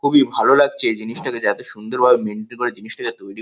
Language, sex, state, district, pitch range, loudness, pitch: Bengali, male, West Bengal, North 24 Parganas, 110-135 Hz, -18 LUFS, 120 Hz